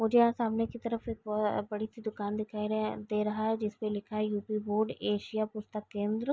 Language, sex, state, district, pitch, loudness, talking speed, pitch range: Hindi, female, Uttar Pradesh, Gorakhpur, 215 Hz, -33 LUFS, 220 wpm, 210-225 Hz